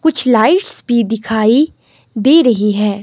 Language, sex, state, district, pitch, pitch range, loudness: Hindi, female, Himachal Pradesh, Shimla, 235 Hz, 220-295 Hz, -13 LUFS